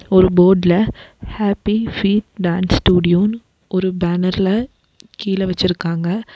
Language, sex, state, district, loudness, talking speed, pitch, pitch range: Tamil, female, Tamil Nadu, Nilgiris, -17 LUFS, 95 wpm, 185 Hz, 180-210 Hz